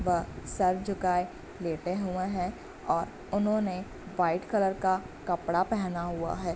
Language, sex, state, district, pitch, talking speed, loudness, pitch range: Hindi, female, Bihar, Bhagalpur, 185 Hz, 135 wpm, -31 LUFS, 175-190 Hz